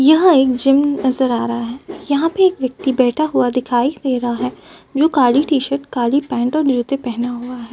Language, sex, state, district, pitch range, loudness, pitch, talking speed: Hindi, female, Uttar Pradesh, Jyotiba Phule Nagar, 245-285 Hz, -16 LUFS, 265 Hz, 210 wpm